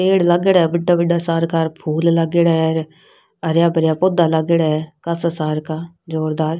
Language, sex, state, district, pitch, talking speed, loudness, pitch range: Rajasthani, female, Rajasthan, Nagaur, 165 Hz, 165 wpm, -17 LUFS, 160-170 Hz